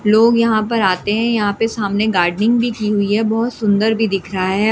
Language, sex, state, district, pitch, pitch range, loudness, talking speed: Hindi, female, Delhi, New Delhi, 215 Hz, 205-225 Hz, -16 LUFS, 240 wpm